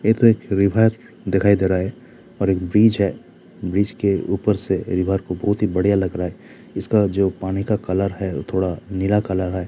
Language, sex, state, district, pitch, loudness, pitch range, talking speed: Hindi, male, Jharkhand, Jamtara, 100 Hz, -20 LUFS, 95-105 Hz, 225 wpm